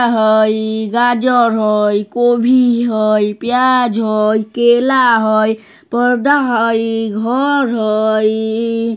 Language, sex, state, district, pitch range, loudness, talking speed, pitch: Bajjika, female, Bihar, Vaishali, 215-245 Hz, -13 LUFS, 95 wpm, 230 Hz